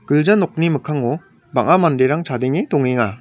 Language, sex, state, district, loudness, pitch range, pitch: Garo, male, Meghalaya, West Garo Hills, -17 LUFS, 130-165 Hz, 150 Hz